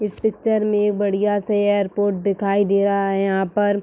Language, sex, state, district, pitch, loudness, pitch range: Hindi, female, Uttar Pradesh, Etah, 205 Hz, -20 LUFS, 200-205 Hz